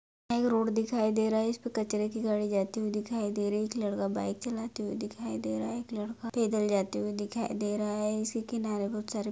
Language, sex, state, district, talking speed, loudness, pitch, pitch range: Hindi, female, Jharkhand, Sahebganj, 240 wpm, -32 LUFS, 215 Hz, 205-225 Hz